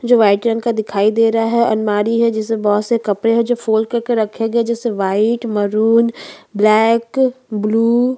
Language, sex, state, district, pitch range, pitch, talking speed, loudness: Hindi, female, Chhattisgarh, Bastar, 215-235 Hz, 225 Hz, 190 wpm, -16 LUFS